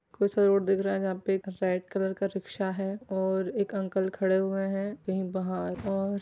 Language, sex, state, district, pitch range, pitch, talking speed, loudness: Hindi, female, Bihar, Saran, 190-195 Hz, 195 Hz, 195 wpm, -29 LUFS